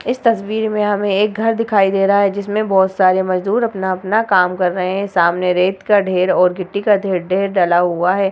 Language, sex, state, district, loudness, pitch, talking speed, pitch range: Hindi, female, Bihar, Vaishali, -16 LUFS, 195 Hz, 225 wpm, 185-205 Hz